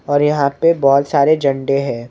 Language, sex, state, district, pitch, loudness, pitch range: Hindi, male, Maharashtra, Mumbai Suburban, 140 Hz, -15 LUFS, 140-145 Hz